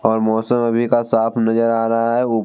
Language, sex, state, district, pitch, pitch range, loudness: Hindi, male, Bihar, Vaishali, 115 Hz, 115-120 Hz, -17 LUFS